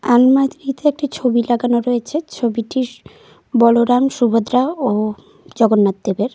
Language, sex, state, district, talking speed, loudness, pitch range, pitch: Bengali, female, West Bengal, Cooch Behar, 105 wpm, -16 LUFS, 230-260 Hz, 245 Hz